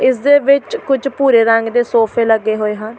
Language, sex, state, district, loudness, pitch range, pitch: Punjabi, female, Delhi, New Delhi, -13 LUFS, 225-275 Hz, 235 Hz